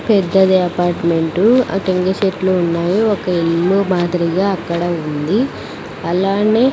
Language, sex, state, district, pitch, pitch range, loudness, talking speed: Telugu, female, Andhra Pradesh, Sri Satya Sai, 185 Hz, 175-195 Hz, -16 LUFS, 105 wpm